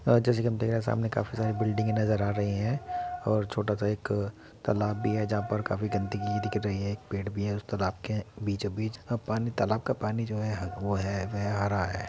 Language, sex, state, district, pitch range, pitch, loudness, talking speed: Hindi, male, Uttar Pradesh, Muzaffarnagar, 100-110 Hz, 105 Hz, -30 LUFS, 265 wpm